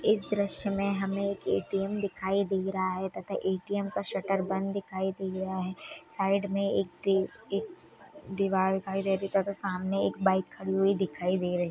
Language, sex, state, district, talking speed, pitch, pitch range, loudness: Hindi, female, Bihar, Samastipur, 180 wpm, 195 Hz, 190-200 Hz, -30 LUFS